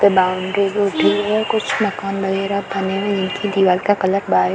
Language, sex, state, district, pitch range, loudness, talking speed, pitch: Hindi, female, Bihar, Darbhanga, 190-205 Hz, -18 LUFS, 210 wpm, 195 Hz